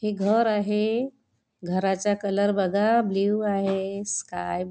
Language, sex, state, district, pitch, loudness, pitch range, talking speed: Marathi, female, Maharashtra, Nagpur, 205 Hz, -25 LUFS, 195-210 Hz, 125 wpm